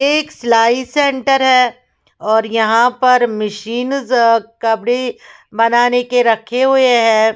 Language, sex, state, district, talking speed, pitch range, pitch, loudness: Hindi, female, Bihar, West Champaran, 130 wpm, 225-255 Hz, 240 Hz, -14 LUFS